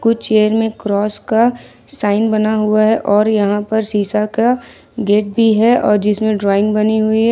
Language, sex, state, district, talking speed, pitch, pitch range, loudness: Hindi, female, Jharkhand, Ranchi, 190 wpm, 215 Hz, 210-225 Hz, -14 LUFS